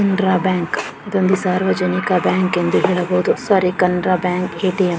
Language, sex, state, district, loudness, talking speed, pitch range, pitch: Kannada, female, Karnataka, Bellary, -17 LUFS, 130 wpm, 180-190 Hz, 185 Hz